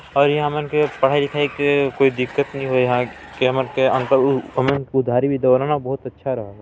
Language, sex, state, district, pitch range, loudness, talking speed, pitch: Chhattisgarhi, male, Chhattisgarh, Balrampur, 130-140 Hz, -19 LUFS, 245 wpm, 135 Hz